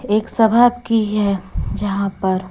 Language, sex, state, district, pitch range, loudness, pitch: Hindi, female, Chhattisgarh, Raipur, 200-225 Hz, -18 LUFS, 210 Hz